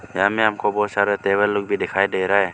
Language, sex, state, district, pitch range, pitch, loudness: Hindi, male, Arunachal Pradesh, Lower Dibang Valley, 100-105 Hz, 100 Hz, -20 LUFS